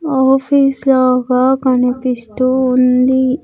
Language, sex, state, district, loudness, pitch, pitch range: Telugu, female, Andhra Pradesh, Sri Satya Sai, -13 LUFS, 260 Hz, 255-265 Hz